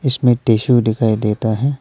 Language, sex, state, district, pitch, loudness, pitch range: Hindi, male, Arunachal Pradesh, Papum Pare, 115 Hz, -16 LUFS, 110-130 Hz